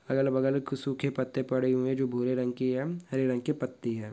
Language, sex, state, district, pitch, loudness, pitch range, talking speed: Hindi, male, Uttar Pradesh, Etah, 130 Hz, -30 LUFS, 130-135 Hz, 245 wpm